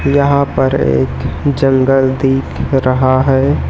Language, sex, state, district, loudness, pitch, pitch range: Hindi, male, Chhattisgarh, Raipur, -13 LUFS, 135 Hz, 130-135 Hz